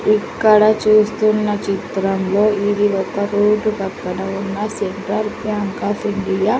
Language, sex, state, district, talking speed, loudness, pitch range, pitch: Telugu, female, Andhra Pradesh, Sri Satya Sai, 120 wpm, -17 LUFS, 195-215 Hz, 205 Hz